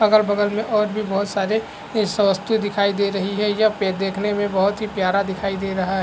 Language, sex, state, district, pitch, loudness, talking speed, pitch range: Hindi, male, Bihar, Araria, 205 Hz, -21 LUFS, 230 wpm, 195-210 Hz